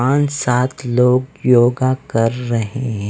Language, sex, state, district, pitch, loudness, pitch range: Hindi, male, Punjab, Fazilka, 125 Hz, -16 LUFS, 120-130 Hz